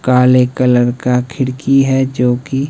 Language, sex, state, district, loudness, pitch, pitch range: Hindi, male, Himachal Pradesh, Shimla, -13 LUFS, 125 Hz, 125-135 Hz